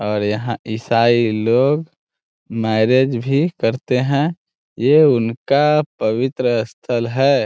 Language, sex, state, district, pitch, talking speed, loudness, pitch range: Hindi, male, Bihar, Saran, 125 Hz, 105 wpm, -17 LUFS, 115-140 Hz